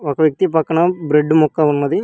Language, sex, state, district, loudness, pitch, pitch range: Telugu, female, Telangana, Hyderabad, -15 LUFS, 155 Hz, 150-165 Hz